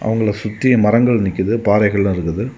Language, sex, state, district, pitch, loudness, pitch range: Tamil, male, Tamil Nadu, Kanyakumari, 105 Hz, -16 LUFS, 100-115 Hz